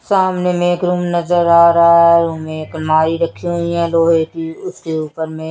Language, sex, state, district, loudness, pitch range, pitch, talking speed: Hindi, female, Haryana, Charkhi Dadri, -14 LUFS, 160-175 Hz, 170 Hz, 205 wpm